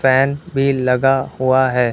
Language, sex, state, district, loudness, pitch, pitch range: Hindi, male, Uttar Pradesh, Lucknow, -16 LUFS, 130 Hz, 130-135 Hz